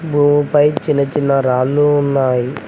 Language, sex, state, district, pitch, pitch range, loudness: Telugu, male, Telangana, Mahabubabad, 145 Hz, 135-145 Hz, -14 LUFS